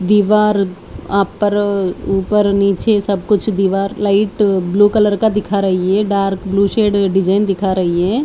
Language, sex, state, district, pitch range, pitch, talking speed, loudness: Hindi, female, Haryana, Charkhi Dadri, 195-210 Hz, 200 Hz, 160 wpm, -15 LUFS